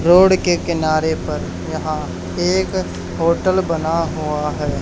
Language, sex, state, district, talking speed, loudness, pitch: Hindi, male, Haryana, Charkhi Dadri, 125 wpm, -18 LUFS, 155 Hz